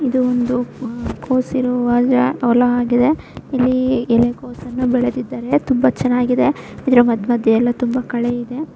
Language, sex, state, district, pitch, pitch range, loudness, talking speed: Kannada, female, Karnataka, Raichur, 245 Hz, 240-255 Hz, -17 LUFS, 125 wpm